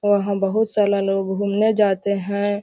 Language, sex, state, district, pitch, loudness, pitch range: Magahi, female, Bihar, Gaya, 200 Hz, -20 LUFS, 200-205 Hz